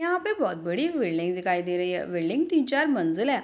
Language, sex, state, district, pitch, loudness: Hindi, female, Bihar, Madhepura, 275 Hz, -26 LUFS